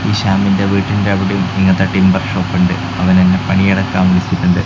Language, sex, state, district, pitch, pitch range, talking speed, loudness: Malayalam, male, Kerala, Kasaragod, 95 Hz, 90-95 Hz, 140 wpm, -13 LUFS